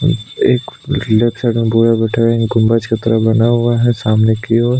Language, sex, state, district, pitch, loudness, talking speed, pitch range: Hindi, male, Chhattisgarh, Sukma, 115 Hz, -14 LUFS, 185 wpm, 110-120 Hz